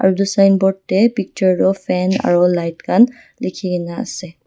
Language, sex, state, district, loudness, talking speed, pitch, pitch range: Nagamese, female, Nagaland, Dimapur, -16 LUFS, 145 wpm, 190 Hz, 180-195 Hz